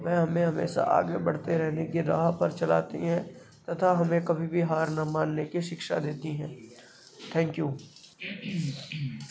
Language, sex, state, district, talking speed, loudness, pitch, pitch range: Hindi, male, Bihar, Bhagalpur, 150 wpm, -29 LUFS, 165 Hz, 155-170 Hz